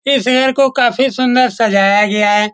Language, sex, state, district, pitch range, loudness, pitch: Hindi, male, Bihar, Saran, 210-265 Hz, -12 LUFS, 250 Hz